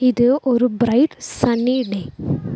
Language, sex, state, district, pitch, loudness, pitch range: Tamil, female, Tamil Nadu, Nilgiris, 250 Hz, -18 LUFS, 235-255 Hz